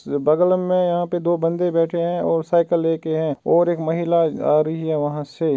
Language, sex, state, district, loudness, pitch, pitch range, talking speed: Hindi, male, Uttar Pradesh, Ghazipur, -20 LUFS, 165 Hz, 155-175 Hz, 215 wpm